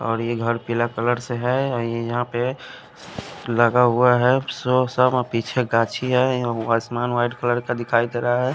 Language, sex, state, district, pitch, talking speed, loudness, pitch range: Hindi, male, Punjab, Kapurthala, 120 Hz, 190 wpm, -21 LUFS, 115-125 Hz